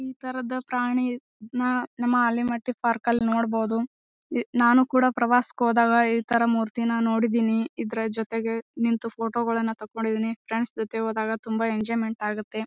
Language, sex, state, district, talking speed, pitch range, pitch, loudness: Kannada, female, Karnataka, Bijapur, 140 wpm, 225-245 Hz, 230 Hz, -25 LUFS